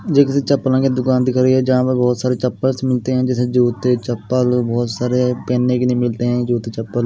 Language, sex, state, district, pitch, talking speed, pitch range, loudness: Hindi, male, Odisha, Malkangiri, 125 Hz, 230 wpm, 120-130 Hz, -17 LUFS